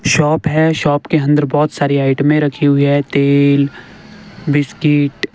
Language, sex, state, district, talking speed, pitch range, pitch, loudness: Hindi, male, Himachal Pradesh, Shimla, 155 wpm, 140-150 Hz, 145 Hz, -14 LUFS